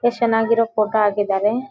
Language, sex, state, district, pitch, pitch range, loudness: Kannada, female, Karnataka, Dharwad, 225 Hz, 210-230 Hz, -18 LUFS